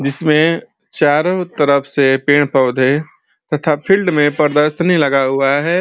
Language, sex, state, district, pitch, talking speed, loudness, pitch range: Hindi, male, Uttar Pradesh, Ghazipur, 150 Hz, 125 wpm, -14 LUFS, 140-160 Hz